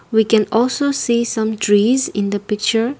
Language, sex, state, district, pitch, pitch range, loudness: English, female, Assam, Kamrup Metropolitan, 225 Hz, 210-240 Hz, -17 LUFS